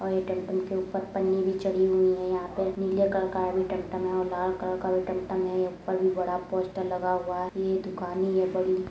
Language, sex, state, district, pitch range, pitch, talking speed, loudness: Hindi, female, Uttar Pradesh, Deoria, 185-190 Hz, 185 Hz, 255 wpm, -28 LUFS